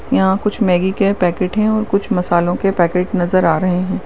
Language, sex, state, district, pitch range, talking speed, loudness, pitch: Hindi, female, Maharashtra, Nagpur, 180-200 Hz, 220 wpm, -16 LUFS, 185 Hz